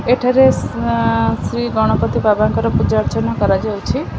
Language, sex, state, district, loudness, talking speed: Odia, female, Odisha, Khordha, -16 LUFS, 115 wpm